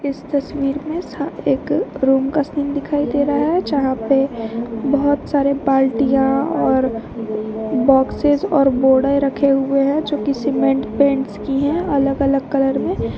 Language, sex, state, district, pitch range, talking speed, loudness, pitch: Hindi, female, Jharkhand, Garhwa, 265-285 Hz, 155 wpm, -18 LUFS, 275 Hz